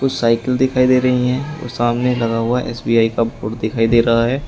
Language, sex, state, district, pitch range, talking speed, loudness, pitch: Hindi, male, Uttar Pradesh, Shamli, 115-125 Hz, 215 wpm, -17 LUFS, 120 Hz